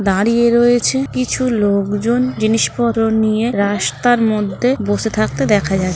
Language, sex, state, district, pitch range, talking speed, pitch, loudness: Bengali, female, West Bengal, Malda, 205-240 Hz, 130 wpm, 220 Hz, -15 LUFS